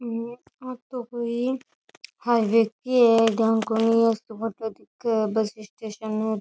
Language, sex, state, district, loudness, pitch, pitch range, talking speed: Rajasthani, female, Rajasthan, Churu, -24 LUFS, 225 Hz, 220-240 Hz, 140 wpm